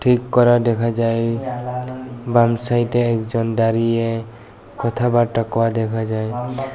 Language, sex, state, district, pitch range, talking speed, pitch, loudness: Bengali, male, Tripura, West Tripura, 115-120 Hz, 105 wpm, 115 Hz, -19 LUFS